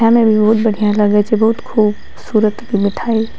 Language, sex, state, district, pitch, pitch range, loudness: Maithili, female, Bihar, Madhepura, 220 Hz, 210-225 Hz, -14 LUFS